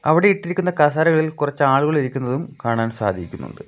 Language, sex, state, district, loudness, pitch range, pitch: Malayalam, male, Kerala, Kollam, -19 LUFS, 115-160 Hz, 145 Hz